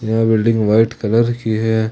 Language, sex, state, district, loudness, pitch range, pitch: Hindi, male, Jharkhand, Ranchi, -16 LUFS, 110-115 Hz, 110 Hz